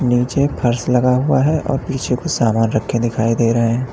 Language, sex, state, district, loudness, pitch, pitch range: Hindi, male, Uttar Pradesh, Lalitpur, -17 LUFS, 125 Hz, 115-135 Hz